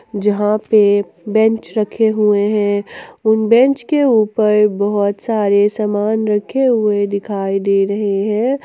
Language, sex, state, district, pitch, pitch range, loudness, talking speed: Hindi, female, Jharkhand, Ranchi, 210 Hz, 205-220 Hz, -15 LUFS, 130 wpm